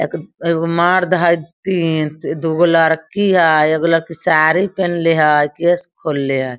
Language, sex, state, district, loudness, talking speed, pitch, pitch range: Hindi, female, Bihar, Sitamarhi, -15 LUFS, 145 wpm, 165 Hz, 155-175 Hz